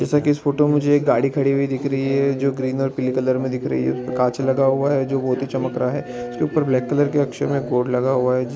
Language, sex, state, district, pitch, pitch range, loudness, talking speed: Maithili, male, Bihar, Araria, 135 Hz, 130-140 Hz, -20 LUFS, 280 wpm